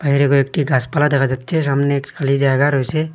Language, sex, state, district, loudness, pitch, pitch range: Bengali, male, Assam, Hailakandi, -16 LUFS, 140 Hz, 135-150 Hz